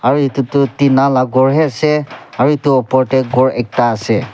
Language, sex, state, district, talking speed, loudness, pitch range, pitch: Nagamese, male, Nagaland, Kohima, 205 wpm, -13 LUFS, 125-140 Hz, 130 Hz